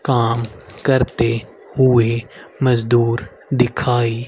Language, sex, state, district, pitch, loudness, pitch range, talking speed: Hindi, male, Haryana, Rohtak, 120 Hz, -18 LUFS, 115-125 Hz, 70 wpm